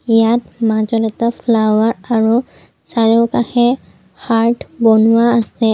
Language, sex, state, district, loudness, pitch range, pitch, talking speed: Assamese, female, Assam, Kamrup Metropolitan, -14 LUFS, 225-235 Hz, 230 Hz, 95 wpm